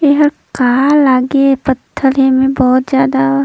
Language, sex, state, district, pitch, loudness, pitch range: Surgujia, female, Chhattisgarh, Sarguja, 265 Hz, -12 LUFS, 255-275 Hz